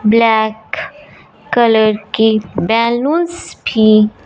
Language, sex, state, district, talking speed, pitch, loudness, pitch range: Hindi, male, Punjab, Fazilka, 70 wpm, 220 Hz, -14 LUFS, 215-235 Hz